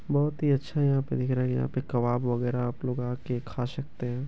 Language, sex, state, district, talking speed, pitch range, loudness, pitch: Hindi, male, Bihar, Begusarai, 240 wpm, 120-140 Hz, -29 LUFS, 125 Hz